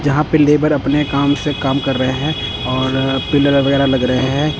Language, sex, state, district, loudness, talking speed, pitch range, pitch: Hindi, male, Punjab, Kapurthala, -15 LUFS, 210 wpm, 135-150 Hz, 140 Hz